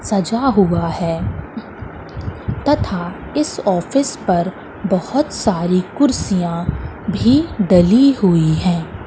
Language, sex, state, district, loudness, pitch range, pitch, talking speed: Hindi, female, Madhya Pradesh, Katni, -17 LUFS, 175-265 Hz, 190 Hz, 95 wpm